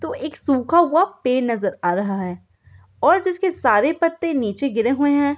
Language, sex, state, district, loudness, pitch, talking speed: Hindi, female, Uttar Pradesh, Gorakhpur, -19 LUFS, 275 Hz, 190 wpm